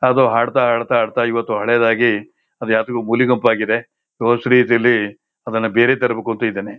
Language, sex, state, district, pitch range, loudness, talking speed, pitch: Kannada, male, Karnataka, Shimoga, 115-120 Hz, -16 LUFS, 150 wpm, 115 Hz